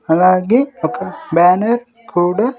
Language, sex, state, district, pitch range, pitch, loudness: Telugu, male, Andhra Pradesh, Sri Satya Sai, 175-235 Hz, 185 Hz, -15 LUFS